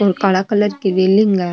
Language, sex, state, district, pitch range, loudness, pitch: Marwari, female, Rajasthan, Nagaur, 185-205 Hz, -15 LUFS, 195 Hz